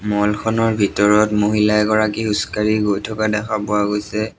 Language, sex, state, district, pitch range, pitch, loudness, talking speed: Assamese, male, Assam, Sonitpur, 105-110 Hz, 105 Hz, -18 LUFS, 150 wpm